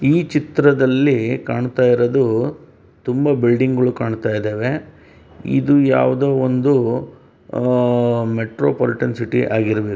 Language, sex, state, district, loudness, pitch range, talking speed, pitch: Kannada, male, Karnataka, Bellary, -17 LUFS, 115-140 Hz, 110 wpm, 125 Hz